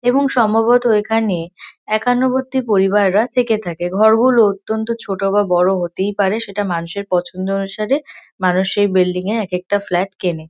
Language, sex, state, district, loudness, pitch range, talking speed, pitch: Bengali, female, West Bengal, North 24 Parganas, -17 LUFS, 185-225 Hz, 155 wpm, 205 Hz